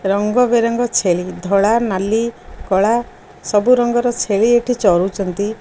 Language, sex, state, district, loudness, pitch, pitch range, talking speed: Odia, female, Odisha, Khordha, -16 LUFS, 220 Hz, 195-240 Hz, 115 wpm